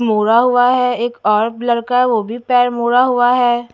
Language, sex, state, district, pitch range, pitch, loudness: Hindi, female, Haryana, Jhajjar, 235-245 Hz, 240 Hz, -14 LUFS